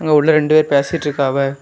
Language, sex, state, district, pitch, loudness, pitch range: Tamil, male, Tamil Nadu, Kanyakumari, 150 Hz, -15 LUFS, 140-155 Hz